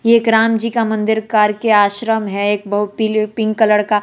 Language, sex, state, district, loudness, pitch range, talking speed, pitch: Hindi, female, Bihar, West Champaran, -15 LUFS, 210-225 Hz, 180 wpm, 220 Hz